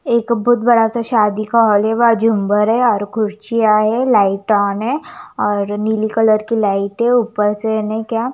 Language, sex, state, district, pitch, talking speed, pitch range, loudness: Hindi, female, Chandigarh, Chandigarh, 220 Hz, 195 wpm, 210-235 Hz, -15 LUFS